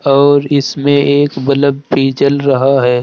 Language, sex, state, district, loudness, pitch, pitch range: Hindi, male, Uttar Pradesh, Saharanpur, -11 LUFS, 140 Hz, 135-140 Hz